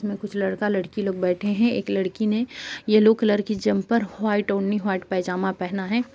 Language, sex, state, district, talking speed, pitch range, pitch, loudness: Hindi, female, Uttar Pradesh, Jalaun, 215 wpm, 190-215 Hz, 205 Hz, -23 LUFS